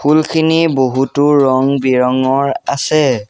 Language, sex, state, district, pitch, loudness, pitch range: Assamese, male, Assam, Sonitpur, 140 Hz, -13 LUFS, 130-150 Hz